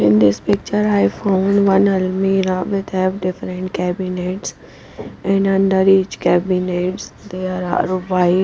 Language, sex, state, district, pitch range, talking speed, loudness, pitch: English, female, Punjab, Pathankot, 180-195 Hz, 130 wpm, -17 LUFS, 185 Hz